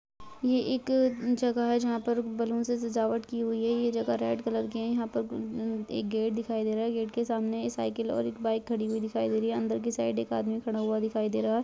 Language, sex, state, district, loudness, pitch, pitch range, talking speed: Hindi, female, Bihar, Darbhanga, -30 LUFS, 225 Hz, 215-235 Hz, 275 wpm